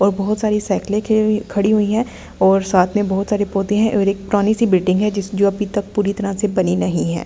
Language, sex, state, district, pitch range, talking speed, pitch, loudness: Hindi, female, Delhi, New Delhi, 195-210 Hz, 240 wpm, 200 Hz, -17 LUFS